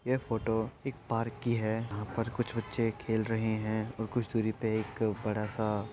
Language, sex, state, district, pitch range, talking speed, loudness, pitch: Hindi, male, Uttar Pradesh, Etah, 110-115 Hz, 215 wpm, -33 LUFS, 110 Hz